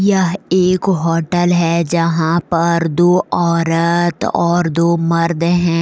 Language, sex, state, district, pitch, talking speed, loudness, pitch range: Hindi, female, Jharkhand, Deoghar, 170 Hz, 125 wpm, -15 LUFS, 165-175 Hz